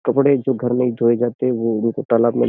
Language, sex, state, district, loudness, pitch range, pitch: Hindi, male, Uttar Pradesh, Jyotiba Phule Nagar, -18 LUFS, 115-125 Hz, 120 Hz